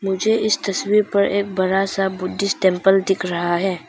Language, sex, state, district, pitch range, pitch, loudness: Hindi, female, Arunachal Pradesh, Papum Pare, 185-200 Hz, 195 Hz, -19 LUFS